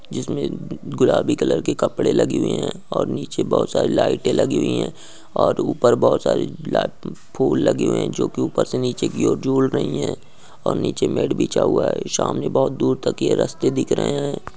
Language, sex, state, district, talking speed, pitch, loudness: Hindi, male, Uttar Pradesh, Deoria, 215 wpm, 135 Hz, -20 LUFS